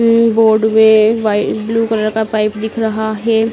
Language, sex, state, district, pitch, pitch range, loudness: Hindi, female, Madhya Pradesh, Dhar, 220 Hz, 215-225 Hz, -13 LUFS